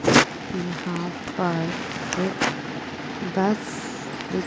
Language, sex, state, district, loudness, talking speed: Hindi, female, Madhya Pradesh, Dhar, -26 LUFS, 65 wpm